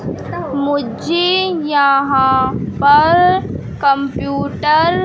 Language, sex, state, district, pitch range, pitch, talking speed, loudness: Hindi, male, Madhya Pradesh, Katni, 275-345 Hz, 290 Hz, 60 wpm, -14 LUFS